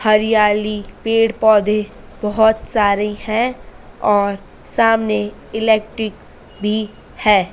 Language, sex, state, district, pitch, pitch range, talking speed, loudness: Hindi, female, Madhya Pradesh, Dhar, 215 Hz, 210-220 Hz, 85 wpm, -17 LUFS